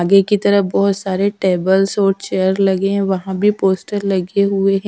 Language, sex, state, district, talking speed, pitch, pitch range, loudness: Hindi, female, Haryana, Rohtak, 195 wpm, 195 Hz, 190-200 Hz, -16 LUFS